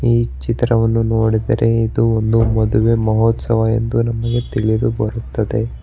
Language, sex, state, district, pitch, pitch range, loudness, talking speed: Kannada, male, Karnataka, Bangalore, 115 Hz, 110-115 Hz, -17 LUFS, 115 wpm